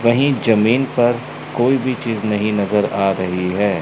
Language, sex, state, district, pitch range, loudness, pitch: Hindi, male, Chandigarh, Chandigarh, 105-125 Hz, -17 LUFS, 115 Hz